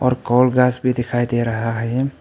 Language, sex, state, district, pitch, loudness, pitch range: Hindi, male, Arunachal Pradesh, Papum Pare, 125 Hz, -18 LUFS, 120-125 Hz